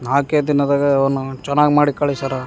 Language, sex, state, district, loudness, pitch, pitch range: Kannada, male, Karnataka, Raichur, -17 LUFS, 140 Hz, 135-145 Hz